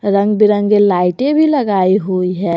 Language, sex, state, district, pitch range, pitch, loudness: Hindi, female, Jharkhand, Garhwa, 185-210 Hz, 200 Hz, -13 LUFS